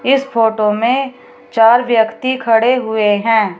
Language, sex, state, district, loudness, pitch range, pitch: Hindi, female, Uttar Pradesh, Shamli, -14 LUFS, 220-250 Hz, 225 Hz